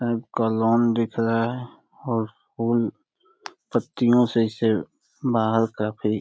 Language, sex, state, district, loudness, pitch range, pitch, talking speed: Hindi, male, Uttar Pradesh, Deoria, -23 LUFS, 110-120 Hz, 115 Hz, 125 wpm